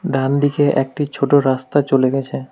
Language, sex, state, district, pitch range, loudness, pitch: Bengali, male, West Bengal, Alipurduar, 135-145 Hz, -17 LUFS, 140 Hz